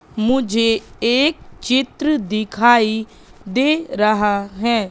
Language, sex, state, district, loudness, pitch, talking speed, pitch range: Hindi, female, Madhya Pradesh, Katni, -17 LUFS, 230 Hz, 85 wpm, 215-260 Hz